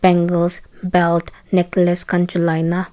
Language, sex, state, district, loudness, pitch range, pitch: Nagamese, female, Nagaland, Kohima, -18 LUFS, 170-180 Hz, 175 Hz